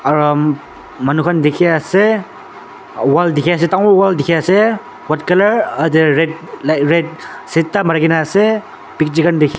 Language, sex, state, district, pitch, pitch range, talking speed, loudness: Nagamese, male, Nagaland, Dimapur, 160 Hz, 150-180 Hz, 145 wpm, -14 LUFS